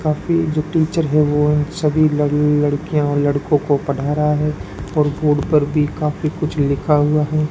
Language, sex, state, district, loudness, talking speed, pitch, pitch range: Hindi, male, Rajasthan, Bikaner, -17 LUFS, 185 wpm, 150 Hz, 145-155 Hz